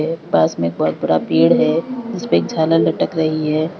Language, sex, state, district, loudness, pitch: Hindi, female, Uttar Pradesh, Lalitpur, -17 LUFS, 155 Hz